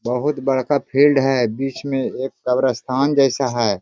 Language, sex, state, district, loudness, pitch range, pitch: Hindi, male, Jharkhand, Sahebganj, -19 LUFS, 125-140 Hz, 135 Hz